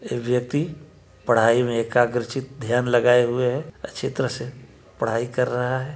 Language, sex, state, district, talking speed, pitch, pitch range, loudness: Chhattisgarhi, male, Chhattisgarh, Sarguja, 160 wpm, 125 Hz, 115-130 Hz, -22 LUFS